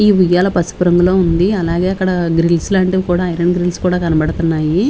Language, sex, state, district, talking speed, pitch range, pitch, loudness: Telugu, female, Andhra Pradesh, Sri Satya Sai, 185 wpm, 170-185 Hz, 180 Hz, -14 LUFS